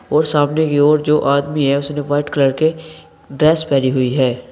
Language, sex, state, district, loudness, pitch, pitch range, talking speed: Hindi, male, Uttar Pradesh, Saharanpur, -16 LUFS, 145 Hz, 140-155 Hz, 200 wpm